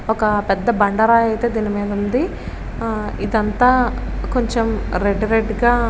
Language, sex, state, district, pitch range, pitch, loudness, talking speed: Telugu, female, Andhra Pradesh, Srikakulam, 210-235 Hz, 220 Hz, -18 LUFS, 130 wpm